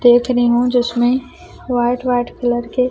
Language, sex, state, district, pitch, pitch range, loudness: Hindi, female, Chhattisgarh, Raipur, 245 Hz, 240-250 Hz, -16 LUFS